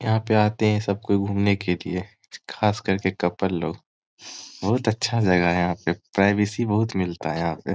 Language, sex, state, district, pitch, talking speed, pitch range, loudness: Hindi, male, Bihar, Gopalganj, 100 Hz, 185 wpm, 90-105 Hz, -23 LUFS